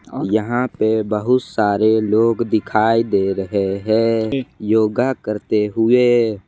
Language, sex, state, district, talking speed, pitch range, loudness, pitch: Hindi, male, Jharkhand, Ranchi, 120 wpm, 105-115 Hz, -17 LUFS, 110 Hz